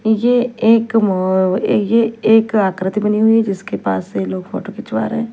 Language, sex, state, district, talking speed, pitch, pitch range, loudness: Hindi, female, Punjab, Fazilka, 170 wpm, 210 Hz, 165-225 Hz, -16 LUFS